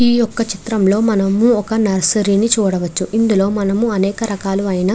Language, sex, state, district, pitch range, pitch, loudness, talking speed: Telugu, female, Andhra Pradesh, Krishna, 195-225 Hz, 205 Hz, -15 LUFS, 160 wpm